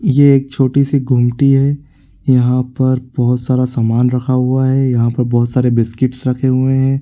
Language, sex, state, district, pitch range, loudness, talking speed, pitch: Hindi, male, Bihar, Supaul, 125-135 Hz, -14 LUFS, 205 wpm, 130 Hz